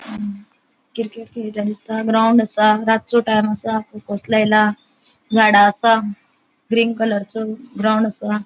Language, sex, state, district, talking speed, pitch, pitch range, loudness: Konkani, female, Goa, North and South Goa, 130 wpm, 220 Hz, 210-230 Hz, -17 LUFS